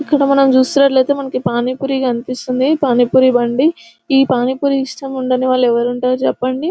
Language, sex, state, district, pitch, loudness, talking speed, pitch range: Telugu, female, Telangana, Nalgonda, 260 Hz, -14 LUFS, 145 wpm, 250-275 Hz